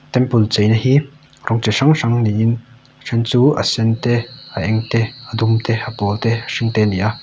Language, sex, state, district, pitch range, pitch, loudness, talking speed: Mizo, male, Mizoram, Aizawl, 110-130 Hz, 115 Hz, -17 LUFS, 230 wpm